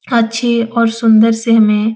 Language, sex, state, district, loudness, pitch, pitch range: Hindi, female, Uttar Pradesh, Etah, -12 LUFS, 230 Hz, 220-235 Hz